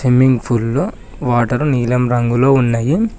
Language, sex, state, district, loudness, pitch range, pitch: Telugu, male, Telangana, Mahabubabad, -15 LUFS, 120-135 Hz, 125 Hz